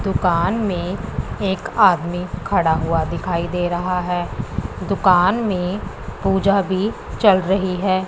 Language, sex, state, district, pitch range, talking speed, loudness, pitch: Hindi, female, Punjab, Pathankot, 175-195 Hz, 125 wpm, -19 LUFS, 185 Hz